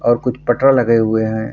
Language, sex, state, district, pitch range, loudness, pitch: Hindi, male, Bihar, Purnia, 110-125 Hz, -15 LUFS, 120 Hz